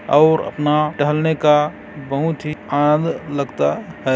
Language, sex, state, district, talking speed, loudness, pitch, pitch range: Chhattisgarhi, male, Chhattisgarh, Korba, 130 wpm, -18 LUFS, 150 Hz, 145-155 Hz